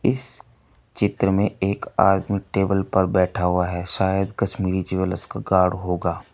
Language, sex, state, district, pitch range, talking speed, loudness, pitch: Hindi, male, Uttar Pradesh, Saharanpur, 95-100 Hz, 150 wpm, -22 LUFS, 95 Hz